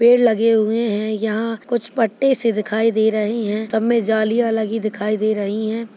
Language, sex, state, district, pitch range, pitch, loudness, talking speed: Hindi, female, Chhattisgarh, Kabirdham, 215-230 Hz, 220 Hz, -19 LUFS, 200 wpm